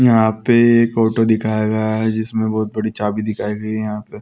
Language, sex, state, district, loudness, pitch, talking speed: Hindi, male, Bihar, Araria, -17 LUFS, 110 Hz, 240 wpm